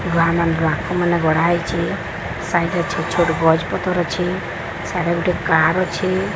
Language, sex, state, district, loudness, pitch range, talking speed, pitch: Odia, female, Odisha, Sambalpur, -19 LUFS, 165-180 Hz, 150 wpm, 170 Hz